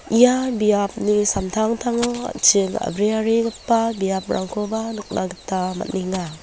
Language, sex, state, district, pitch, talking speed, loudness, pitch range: Garo, female, Meghalaya, West Garo Hills, 210 Hz, 85 wpm, -20 LUFS, 190-230 Hz